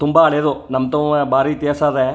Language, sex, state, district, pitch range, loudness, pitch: Kannada, male, Karnataka, Chamarajanagar, 135-150 Hz, -16 LUFS, 145 Hz